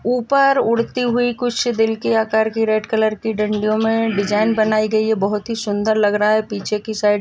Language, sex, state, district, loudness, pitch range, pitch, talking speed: Hindi, female, Maharashtra, Solapur, -18 LUFS, 210-230 Hz, 220 Hz, 225 wpm